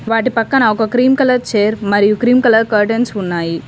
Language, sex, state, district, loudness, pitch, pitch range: Telugu, female, Telangana, Komaram Bheem, -13 LUFS, 220 Hz, 205-245 Hz